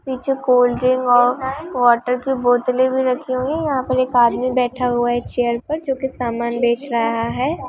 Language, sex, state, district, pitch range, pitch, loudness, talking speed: Hindi, female, Bihar, Vaishali, 240-260 Hz, 250 Hz, -18 LUFS, 195 wpm